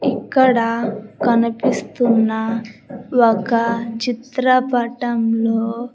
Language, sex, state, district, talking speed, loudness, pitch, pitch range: Telugu, female, Andhra Pradesh, Sri Satya Sai, 40 wpm, -18 LUFS, 230 Hz, 225-245 Hz